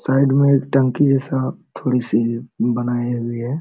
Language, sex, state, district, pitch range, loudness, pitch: Hindi, male, Jharkhand, Sahebganj, 120-135 Hz, -19 LUFS, 130 Hz